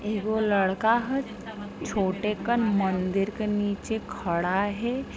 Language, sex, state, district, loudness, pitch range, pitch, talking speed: Chhattisgarhi, female, Chhattisgarh, Sarguja, -27 LUFS, 195-220 Hz, 210 Hz, 115 wpm